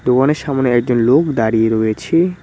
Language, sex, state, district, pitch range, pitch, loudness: Bengali, male, West Bengal, Cooch Behar, 115-150 Hz, 125 Hz, -15 LUFS